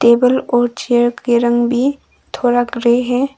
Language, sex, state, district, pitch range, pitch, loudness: Hindi, female, Arunachal Pradesh, Longding, 240-250 Hz, 240 Hz, -15 LUFS